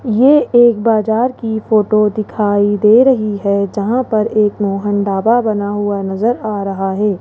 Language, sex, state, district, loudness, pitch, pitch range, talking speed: Hindi, male, Rajasthan, Jaipur, -14 LUFS, 215 Hz, 205-230 Hz, 165 wpm